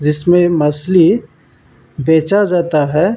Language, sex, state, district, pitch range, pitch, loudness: Hindi, male, Karnataka, Bangalore, 150-175 Hz, 160 Hz, -13 LUFS